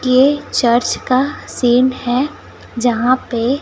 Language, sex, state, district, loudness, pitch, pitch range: Hindi, female, Chhattisgarh, Raipur, -15 LUFS, 255 Hz, 245-260 Hz